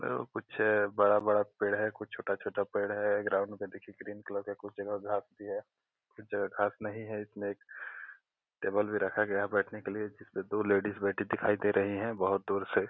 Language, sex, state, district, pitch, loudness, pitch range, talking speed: Hindi, male, Bihar, Gopalganj, 105 Hz, -33 LUFS, 100-105 Hz, 220 wpm